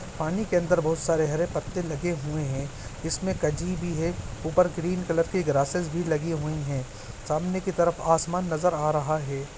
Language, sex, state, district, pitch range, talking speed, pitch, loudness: Hindi, male, Andhra Pradesh, Visakhapatnam, 150-175 Hz, 190 wpm, 160 Hz, -27 LUFS